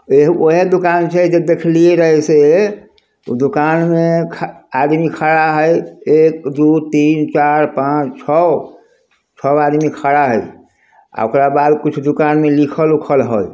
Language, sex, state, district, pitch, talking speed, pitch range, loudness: Hindi, male, Bihar, Samastipur, 155 Hz, 135 wpm, 145-165 Hz, -13 LUFS